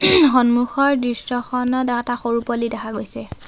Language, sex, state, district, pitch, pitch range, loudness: Assamese, female, Assam, Sonitpur, 245 Hz, 235-255 Hz, -19 LUFS